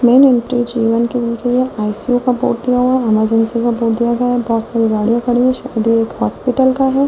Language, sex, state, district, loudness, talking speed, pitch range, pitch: Hindi, female, Delhi, New Delhi, -15 LUFS, 85 wpm, 225-250 Hz, 240 Hz